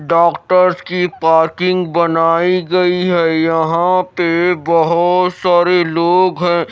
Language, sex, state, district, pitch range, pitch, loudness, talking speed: Hindi, male, Odisha, Malkangiri, 165-180 Hz, 175 Hz, -13 LUFS, 100 wpm